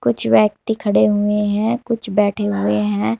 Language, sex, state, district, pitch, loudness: Hindi, female, Uttar Pradesh, Saharanpur, 205 Hz, -17 LUFS